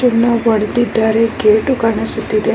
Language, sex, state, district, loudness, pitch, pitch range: Kannada, female, Karnataka, Bellary, -14 LUFS, 225 Hz, 220-235 Hz